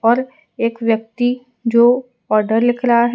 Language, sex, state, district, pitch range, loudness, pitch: Hindi, female, Gujarat, Valsad, 230-250 Hz, -17 LUFS, 240 Hz